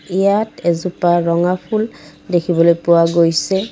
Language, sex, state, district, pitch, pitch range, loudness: Assamese, female, Assam, Kamrup Metropolitan, 175 Hz, 170-190 Hz, -16 LUFS